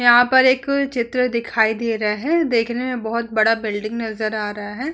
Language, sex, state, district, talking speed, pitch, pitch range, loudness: Hindi, female, Bihar, Vaishali, 205 wpm, 235 Hz, 220-255 Hz, -19 LUFS